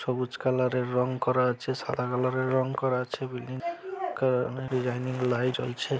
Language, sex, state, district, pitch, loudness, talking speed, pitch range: Bengali, male, West Bengal, Malda, 130 Hz, -29 LUFS, 180 wpm, 125-130 Hz